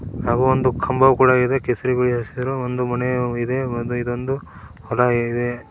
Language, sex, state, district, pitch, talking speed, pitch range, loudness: Kannada, male, Karnataka, Koppal, 125 Hz, 145 wpm, 120-130 Hz, -20 LUFS